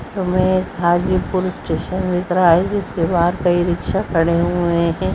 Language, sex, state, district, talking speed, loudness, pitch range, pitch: Hindi, female, Uttar Pradesh, Hamirpur, 150 wpm, -18 LUFS, 170-185 Hz, 180 Hz